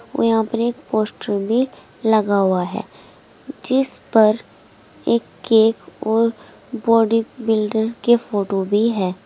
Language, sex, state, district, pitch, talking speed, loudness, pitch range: Hindi, female, Uttar Pradesh, Saharanpur, 225 Hz, 125 wpm, -19 LUFS, 215-230 Hz